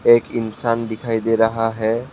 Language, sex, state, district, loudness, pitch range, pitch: Hindi, male, Assam, Kamrup Metropolitan, -19 LUFS, 110-115 Hz, 115 Hz